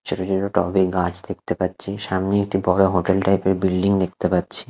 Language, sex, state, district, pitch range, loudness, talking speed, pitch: Bengali, male, Odisha, Khordha, 90-95 Hz, -21 LUFS, 205 wpm, 95 Hz